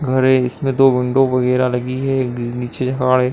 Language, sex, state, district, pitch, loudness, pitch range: Hindi, male, Uttar Pradesh, Hamirpur, 130 Hz, -17 LUFS, 125-130 Hz